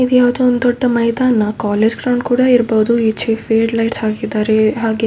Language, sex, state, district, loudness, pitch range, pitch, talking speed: Kannada, female, Karnataka, Dakshina Kannada, -14 LUFS, 220-245 Hz, 230 Hz, 180 wpm